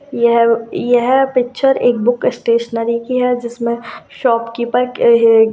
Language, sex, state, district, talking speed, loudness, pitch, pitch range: Hindi, female, Rajasthan, Churu, 140 wpm, -15 LUFS, 235 Hz, 235-250 Hz